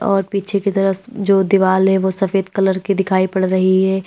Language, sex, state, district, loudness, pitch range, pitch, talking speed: Hindi, female, Uttar Pradesh, Lalitpur, -16 LUFS, 190-195 Hz, 195 Hz, 220 wpm